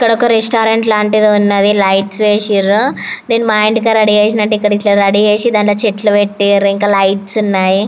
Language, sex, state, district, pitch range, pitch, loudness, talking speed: Telugu, female, Andhra Pradesh, Anantapur, 200-220 Hz, 210 Hz, -11 LUFS, 160 wpm